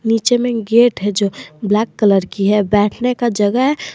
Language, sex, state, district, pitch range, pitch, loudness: Hindi, male, Jharkhand, Garhwa, 205-240 Hz, 220 Hz, -15 LUFS